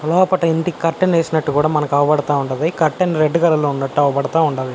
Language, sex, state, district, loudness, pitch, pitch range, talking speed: Telugu, male, Andhra Pradesh, Anantapur, -17 LUFS, 155 Hz, 145-165 Hz, 190 wpm